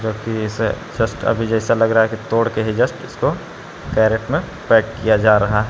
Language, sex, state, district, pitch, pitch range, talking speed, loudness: Hindi, male, Jharkhand, Palamu, 110 Hz, 110-115 Hz, 220 wpm, -18 LUFS